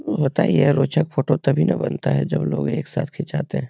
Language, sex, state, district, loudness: Hindi, male, Bihar, Lakhisarai, -20 LUFS